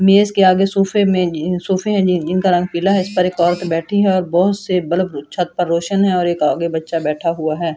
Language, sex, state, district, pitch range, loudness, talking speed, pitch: Hindi, female, Delhi, New Delhi, 170-195 Hz, -16 LUFS, 245 wpm, 180 Hz